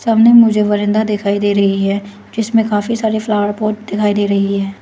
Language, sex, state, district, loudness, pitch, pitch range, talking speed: Hindi, female, Arunachal Pradesh, Lower Dibang Valley, -14 LUFS, 210 Hz, 200-220 Hz, 200 wpm